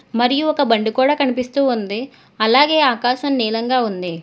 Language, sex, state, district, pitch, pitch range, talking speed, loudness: Telugu, female, Telangana, Hyderabad, 250 Hz, 225-275 Hz, 140 wpm, -17 LUFS